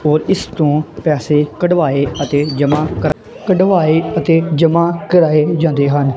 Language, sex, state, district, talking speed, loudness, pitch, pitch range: Punjabi, female, Punjab, Kapurthala, 135 wpm, -14 LUFS, 155 Hz, 150-165 Hz